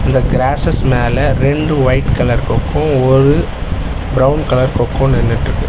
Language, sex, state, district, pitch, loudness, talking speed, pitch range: Tamil, male, Tamil Nadu, Chennai, 130 Hz, -14 LUFS, 125 wpm, 120-135 Hz